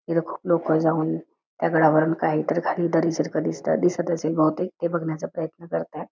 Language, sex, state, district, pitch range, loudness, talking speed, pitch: Marathi, female, Karnataka, Belgaum, 160-170 Hz, -23 LUFS, 175 wpm, 165 Hz